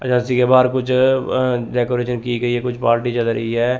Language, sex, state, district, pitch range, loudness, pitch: Hindi, male, Chandigarh, Chandigarh, 120-125 Hz, -18 LUFS, 125 Hz